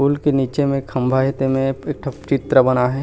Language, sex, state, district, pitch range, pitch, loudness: Chhattisgarhi, male, Chhattisgarh, Rajnandgaon, 130-140 Hz, 135 Hz, -18 LUFS